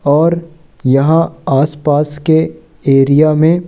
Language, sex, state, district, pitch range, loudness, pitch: Hindi, male, Madhya Pradesh, Katni, 145-160 Hz, -12 LUFS, 155 Hz